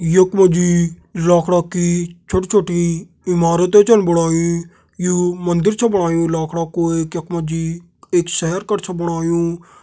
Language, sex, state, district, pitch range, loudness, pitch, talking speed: Garhwali, male, Uttarakhand, Tehri Garhwal, 170-180 Hz, -17 LUFS, 175 Hz, 150 wpm